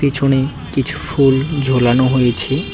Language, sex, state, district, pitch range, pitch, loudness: Bengali, male, West Bengal, Cooch Behar, 130-140 Hz, 135 Hz, -15 LUFS